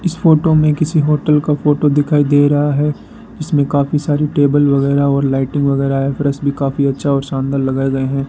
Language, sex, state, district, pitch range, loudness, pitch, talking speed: Hindi, male, Rajasthan, Bikaner, 140-150 Hz, -14 LUFS, 145 Hz, 210 wpm